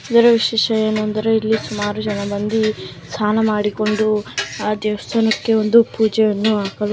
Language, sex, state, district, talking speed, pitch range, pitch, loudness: Kannada, female, Karnataka, Mysore, 120 wpm, 210-220 Hz, 215 Hz, -18 LUFS